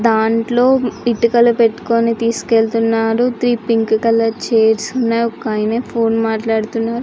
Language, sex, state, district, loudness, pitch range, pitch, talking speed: Telugu, female, Andhra Pradesh, Srikakulam, -15 LUFS, 225-235 Hz, 230 Hz, 120 wpm